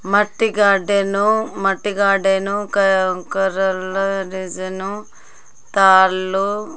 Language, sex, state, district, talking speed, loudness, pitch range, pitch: Telugu, female, Telangana, Karimnagar, 60 wpm, -17 LUFS, 190-200 Hz, 195 Hz